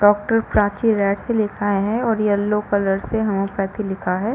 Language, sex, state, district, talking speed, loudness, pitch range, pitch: Hindi, female, Chhattisgarh, Rajnandgaon, 165 wpm, -20 LUFS, 200-220 Hz, 205 Hz